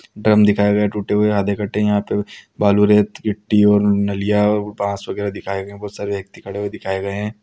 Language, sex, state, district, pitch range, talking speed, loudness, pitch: Hindi, male, Bihar, Araria, 100-105 Hz, 240 wpm, -18 LUFS, 105 Hz